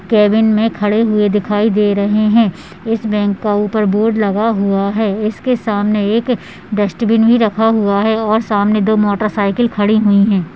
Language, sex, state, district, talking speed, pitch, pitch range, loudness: Hindi, female, Uttarakhand, Tehri Garhwal, 175 wpm, 210 Hz, 205-220 Hz, -14 LUFS